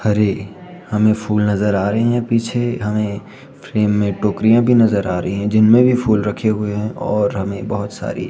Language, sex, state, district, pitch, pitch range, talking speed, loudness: Hindi, male, Himachal Pradesh, Shimla, 105 Hz, 100-115 Hz, 210 wpm, -17 LUFS